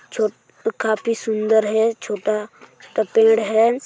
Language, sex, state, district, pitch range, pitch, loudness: Hindi, male, Chhattisgarh, Sarguja, 215-225 Hz, 220 Hz, -20 LUFS